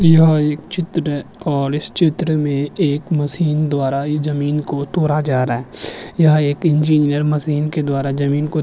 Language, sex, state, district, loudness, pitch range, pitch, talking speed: Hindi, male, Uttarakhand, Tehri Garhwal, -17 LUFS, 145-155 Hz, 150 Hz, 180 wpm